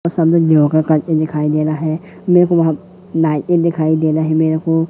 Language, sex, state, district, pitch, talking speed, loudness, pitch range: Hindi, female, Madhya Pradesh, Katni, 160 Hz, 170 wpm, -15 LUFS, 155-170 Hz